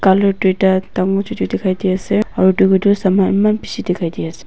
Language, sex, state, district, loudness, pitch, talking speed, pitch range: Nagamese, female, Nagaland, Dimapur, -15 LUFS, 190 Hz, 215 wpm, 185-200 Hz